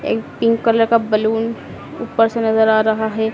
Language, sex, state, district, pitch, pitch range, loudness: Hindi, female, Madhya Pradesh, Dhar, 225 Hz, 220-230 Hz, -16 LUFS